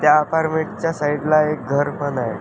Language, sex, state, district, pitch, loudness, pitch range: Marathi, male, Maharashtra, Sindhudurg, 150 Hz, -20 LUFS, 145-160 Hz